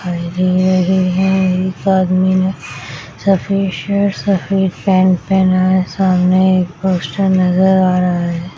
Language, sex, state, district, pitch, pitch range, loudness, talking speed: Hindi, female, Bihar, Madhepura, 185 Hz, 180-190 Hz, -14 LUFS, 110 wpm